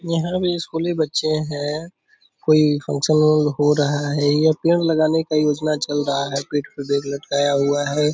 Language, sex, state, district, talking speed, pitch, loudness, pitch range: Hindi, male, Bihar, Purnia, 175 wpm, 150 Hz, -20 LUFS, 145-160 Hz